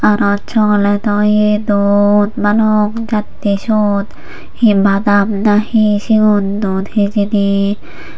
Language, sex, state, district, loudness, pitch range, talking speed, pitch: Chakma, female, Tripura, Unakoti, -13 LUFS, 200-210 Hz, 95 wpm, 205 Hz